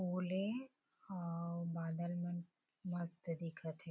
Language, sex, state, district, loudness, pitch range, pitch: Hindi, female, Chhattisgarh, Bilaspur, -44 LUFS, 170-185 Hz, 175 Hz